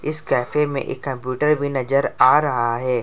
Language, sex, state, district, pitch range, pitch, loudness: Hindi, male, Jharkhand, Ranchi, 130-150 Hz, 135 Hz, -19 LUFS